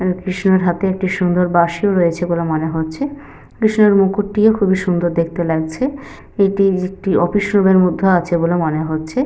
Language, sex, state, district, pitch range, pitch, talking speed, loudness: Bengali, female, West Bengal, Malda, 170-195 Hz, 185 Hz, 155 wpm, -16 LUFS